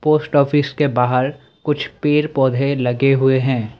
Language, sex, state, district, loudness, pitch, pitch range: Hindi, male, Assam, Sonitpur, -17 LUFS, 140 Hz, 130-145 Hz